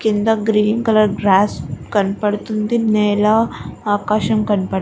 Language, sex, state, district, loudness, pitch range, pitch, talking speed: Telugu, female, Andhra Pradesh, Guntur, -17 LUFS, 205-220 Hz, 210 Hz, 100 wpm